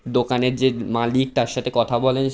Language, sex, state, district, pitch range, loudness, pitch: Bengali, male, West Bengal, Jhargram, 120-130 Hz, -21 LUFS, 125 Hz